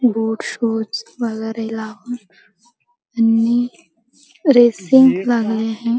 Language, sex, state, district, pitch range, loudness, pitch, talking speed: Marathi, female, Maharashtra, Chandrapur, 225-245 Hz, -17 LUFS, 230 Hz, 70 wpm